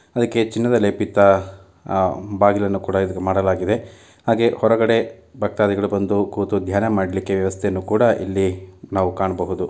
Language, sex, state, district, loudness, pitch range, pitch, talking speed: Kannada, male, Karnataka, Mysore, -19 LUFS, 95-110 Hz, 100 Hz, 115 wpm